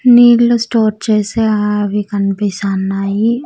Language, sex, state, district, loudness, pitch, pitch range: Telugu, female, Andhra Pradesh, Sri Satya Sai, -13 LUFS, 210 Hz, 200-235 Hz